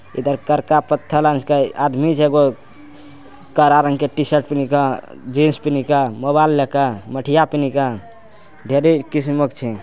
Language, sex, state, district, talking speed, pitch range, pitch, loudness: Angika, male, Bihar, Bhagalpur, 135 wpm, 140-150 Hz, 145 Hz, -17 LUFS